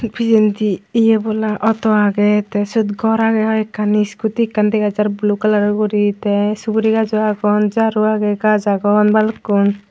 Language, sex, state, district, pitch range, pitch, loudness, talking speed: Chakma, female, Tripura, Unakoti, 210-220 Hz, 215 Hz, -16 LUFS, 155 wpm